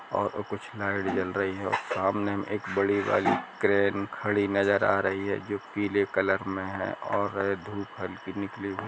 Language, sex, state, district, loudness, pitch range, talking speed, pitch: Hindi, male, Jharkhand, Jamtara, -28 LUFS, 95-100 Hz, 185 wpm, 100 Hz